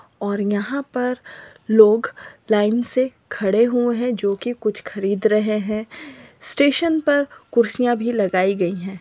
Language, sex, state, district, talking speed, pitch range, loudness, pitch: Hindi, female, Chhattisgarh, Bilaspur, 145 wpm, 205-245 Hz, -20 LUFS, 220 Hz